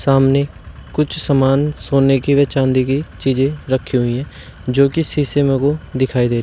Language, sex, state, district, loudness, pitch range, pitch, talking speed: Hindi, male, Uttar Pradesh, Shamli, -16 LUFS, 130-145 Hz, 135 Hz, 175 wpm